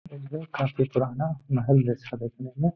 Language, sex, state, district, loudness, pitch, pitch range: Hindi, male, Bihar, Gaya, -27 LUFS, 135 Hz, 130-155 Hz